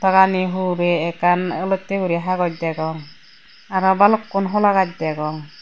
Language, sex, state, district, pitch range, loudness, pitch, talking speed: Chakma, female, Tripura, Unakoti, 165-190 Hz, -19 LUFS, 185 Hz, 130 wpm